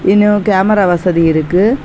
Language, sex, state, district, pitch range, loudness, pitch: Tamil, female, Tamil Nadu, Kanyakumari, 175-205 Hz, -11 LUFS, 190 Hz